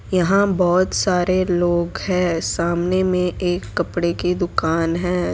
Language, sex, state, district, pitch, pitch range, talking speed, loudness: Hindi, female, Gujarat, Valsad, 180 Hz, 170-185 Hz, 135 wpm, -19 LUFS